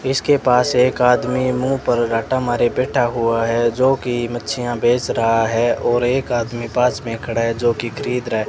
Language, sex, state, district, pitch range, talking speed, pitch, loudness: Hindi, male, Rajasthan, Bikaner, 115-125 Hz, 190 wpm, 120 Hz, -18 LUFS